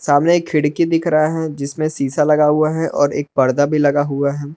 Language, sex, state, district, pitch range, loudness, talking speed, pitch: Hindi, male, Jharkhand, Palamu, 145-155 Hz, -16 LUFS, 235 wpm, 150 Hz